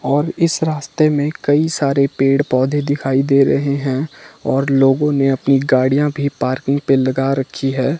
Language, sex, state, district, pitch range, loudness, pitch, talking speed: Hindi, male, Himachal Pradesh, Shimla, 135-145 Hz, -16 LUFS, 140 Hz, 170 wpm